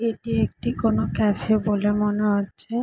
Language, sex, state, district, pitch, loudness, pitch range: Bengali, female, West Bengal, Jalpaiguri, 210 Hz, -23 LUFS, 205-220 Hz